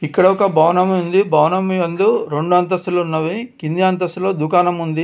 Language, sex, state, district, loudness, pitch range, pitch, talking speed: Telugu, male, Telangana, Hyderabad, -16 LUFS, 160-185 Hz, 180 Hz, 155 wpm